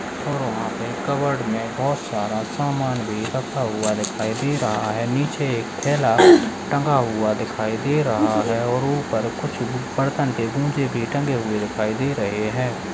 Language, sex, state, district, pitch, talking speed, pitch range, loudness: Hindi, male, Rajasthan, Churu, 120 Hz, 160 wpm, 110-140 Hz, -21 LUFS